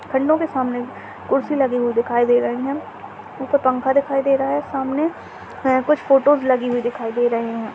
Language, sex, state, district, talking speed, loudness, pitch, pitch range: Hindi, female, Chhattisgarh, Jashpur, 200 wpm, -19 LUFS, 265 Hz, 240-275 Hz